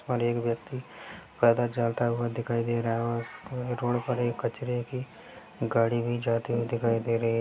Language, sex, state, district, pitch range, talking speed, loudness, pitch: Hindi, male, Bihar, Sitamarhi, 115-120 Hz, 210 wpm, -29 LUFS, 120 Hz